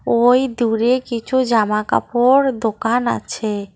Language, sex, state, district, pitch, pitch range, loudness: Bengali, female, West Bengal, Cooch Behar, 235 Hz, 225-250 Hz, -17 LUFS